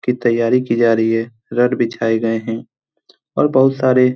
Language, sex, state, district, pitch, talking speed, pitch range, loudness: Hindi, male, Bihar, Jamui, 120 Hz, 185 wpm, 115-125 Hz, -16 LUFS